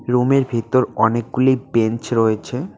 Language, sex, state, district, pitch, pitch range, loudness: Bengali, male, West Bengal, Cooch Behar, 120 Hz, 115-130 Hz, -18 LUFS